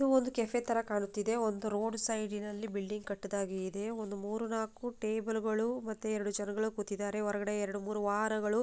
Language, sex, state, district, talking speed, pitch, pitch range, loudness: Kannada, female, Karnataka, Bijapur, 180 wpm, 215 Hz, 205-225 Hz, -35 LUFS